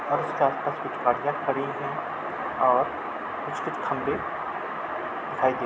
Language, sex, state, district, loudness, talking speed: Hindi, male, Uttar Pradesh, Budaun, -27 LUFS, 135 wpm